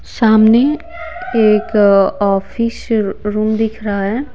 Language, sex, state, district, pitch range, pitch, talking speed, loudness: Hindi, female, Bihar, Patna, 205-240 Hz, 220 Hz, 95 wpm, -14 LUFS